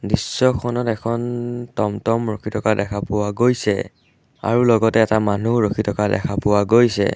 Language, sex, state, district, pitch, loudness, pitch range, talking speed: Assamese, male, Assam, Sonitpur, 110 Hz, -19 LUFS, 105-120 Hz, 145 wpm